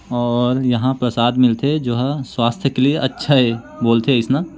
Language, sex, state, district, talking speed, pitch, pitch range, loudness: Chhattisgarhi, male, Chhattisgarh, Korba, 170 wpm, 125 Hz, 120-135 Hz, -17 LUFS